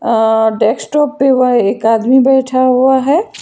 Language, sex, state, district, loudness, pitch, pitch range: Hindi, female, Karnataka, Bangalore, -11 LUFS, 255 Hz, 225-265 Hz